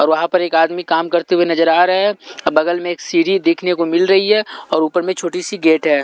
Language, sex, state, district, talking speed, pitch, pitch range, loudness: Hindi, male, Punjab, Pathankot, 280 wpm, 175 Hz, 165-185 Hz, -15 LUFS